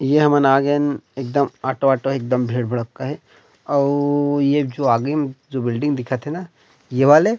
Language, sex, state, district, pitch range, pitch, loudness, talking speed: Chhattisgarhi, male, Chhattisgarh, Rajnandgaon, 130-145 Hz, 140 Hz, -19 LUFS, 205 wpm